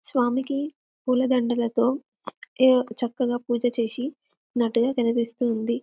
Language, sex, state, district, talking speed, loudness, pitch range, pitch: Telugu, female, Telangana, Karimnagar, 70 wpm, -24 LUFS, 235-260 Hz, 245 Hz